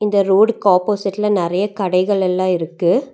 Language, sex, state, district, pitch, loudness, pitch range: Tamil, female, Tamil Nadu, Nilgiris, 195 Hz, -16 LUFS, 185-210 Hz